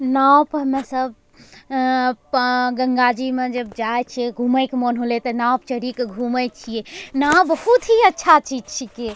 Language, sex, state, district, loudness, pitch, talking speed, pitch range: Angika, female, Bihar, Bhagalpur, -19 LUFS, 255 Hz, 190 wpm, 245-270 Hz